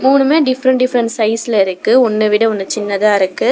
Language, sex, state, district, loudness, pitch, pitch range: Tamil, female, Tamil Nadu, Namakkal, -13 LUFS, 225 Hz, 210-255 Hz